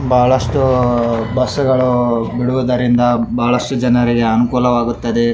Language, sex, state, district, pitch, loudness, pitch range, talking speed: Kannada, male, Karnataka, Raichur, 125 Hz, -15 LUFS, 120-125 Hz, 90 wpm